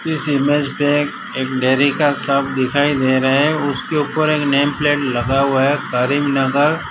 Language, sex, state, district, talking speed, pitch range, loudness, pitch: Hindi, male, Gujarat, Valsad, 180 wpm, 135-145 Hz, -16 LUFS, 140 Hz